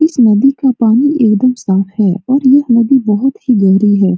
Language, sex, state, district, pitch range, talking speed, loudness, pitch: Hindi, female, Bihar, Supaul, 205-270 Hz, 200 wpm, -11 LUFS, 235 Hz